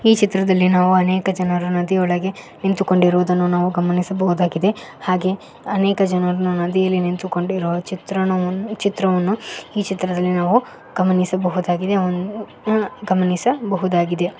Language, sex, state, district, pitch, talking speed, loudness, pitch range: Kannada, female, Karnataka, Koppal, 185 Hz, 85 wpm, -19 LUFS, 180-195 Hz